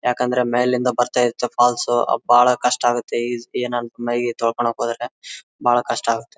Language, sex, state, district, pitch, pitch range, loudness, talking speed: Kannada, male, Karnataka, Bellary, 120 Hz, 120-125 Hz, -19 LUFS, 150 wpm